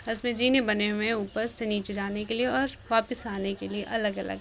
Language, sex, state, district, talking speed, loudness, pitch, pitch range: Hindi, female, Bihar, Kishanganj, 245 wpm, -28 LUFS, 220 Hz, 205-235 Hz